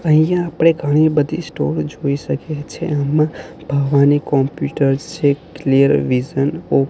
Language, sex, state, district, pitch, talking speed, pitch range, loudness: Gujarati, male, Gujarat, Gandhinagar, 150 Hz, 140 wpm, 140-155 Hz, -17 LUFS